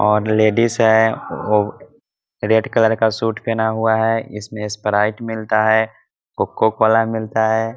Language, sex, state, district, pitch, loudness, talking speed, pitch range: Hindi, male, Bihar, Muzaffarpur, 110 Hz, -17 LUFS, 155 wpm, 110-115 Hz